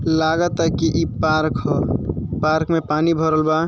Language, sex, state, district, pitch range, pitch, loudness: Bhojpuri, male, Uttar Pradesh, Ghazipur, 155-165 Hz, 160 Hz, -19 LUFS